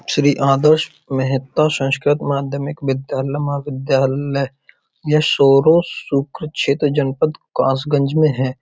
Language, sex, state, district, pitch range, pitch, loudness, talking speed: Hindi, male, Uttar Pradesh, Budaun, 135-150 Hz, 140 Hz, -17 LUFS, 105 wpm